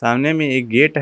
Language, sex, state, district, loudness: Hindi, male, Jharkhand, Garhwa, -16 LUFS